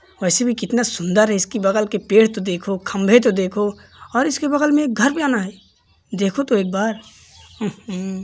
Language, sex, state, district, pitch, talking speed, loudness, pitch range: Hindi, male, Uttar Pradesh, Varanasi, 210 Hz, 205 wpm, -19 LUFS, 195-240 Hz